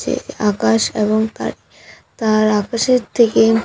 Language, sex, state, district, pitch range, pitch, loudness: Bengali, female, West Bengal, Purulia, 210-230 Hz, 220 Hz, -16 LUFS